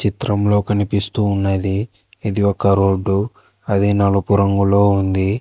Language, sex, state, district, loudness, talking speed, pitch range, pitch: Telugu, male, Telangana, Hyderabad, -17 LUFS, 110 wpm, 100-105 Hz, 100 Hz